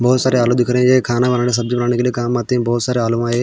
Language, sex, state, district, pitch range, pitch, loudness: Hindi, male, Bihar, Patna, 120-125 Hz, 120 Hz, -16 LUFS